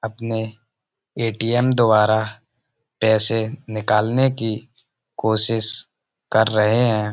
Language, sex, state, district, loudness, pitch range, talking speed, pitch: Hindi, male, Uttar Pradesh, Budaun, -19 LUFS, 110-120 Hz, 100 wpm, 110 Hz